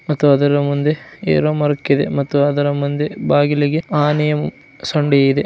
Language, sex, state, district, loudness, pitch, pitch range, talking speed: Kannada, male, Karnataka, Dharwad, -17 LUFS, 145 Hz, 140-150 Hz, 145 wpm